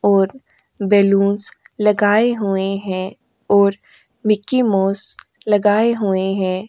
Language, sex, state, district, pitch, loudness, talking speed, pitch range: Hindi, female, Uttar Pradesh, Jyotiba Phule Nagar, 205 Hz, -17 LUFS, 100 wpm, 195-215 Hz